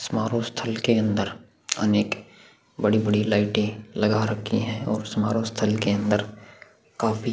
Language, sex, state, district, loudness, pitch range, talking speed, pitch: Hindi, male, Chhattisgarh, Sukma, -24 LUFS, 105-115 Hz, 130 wpm, 110 Hz